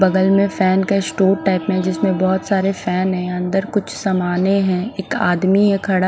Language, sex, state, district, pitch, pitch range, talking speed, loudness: Hindi, male, Punjab, Fazilka, 190 Hz, 185-195 Hz, 195 wpm, -17 LUFS